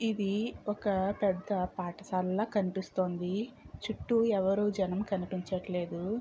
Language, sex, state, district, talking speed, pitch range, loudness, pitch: Telugu, female, Andhra Pradesh, Chittoor, 85 wpm, 185-210 Hz, -33 LUFS, 195 Hz